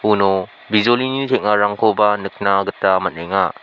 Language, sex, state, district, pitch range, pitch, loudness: Garo, male, Meghalaya, South Garo Hills, 95-105 Hz, 105 Hz, -17 LUFS